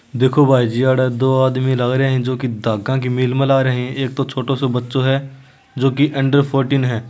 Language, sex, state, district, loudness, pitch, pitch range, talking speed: Hindi, male, Rajasthan, Churu, -17 LUFS, 130 Hz, 125-135 Hz, 230 wpm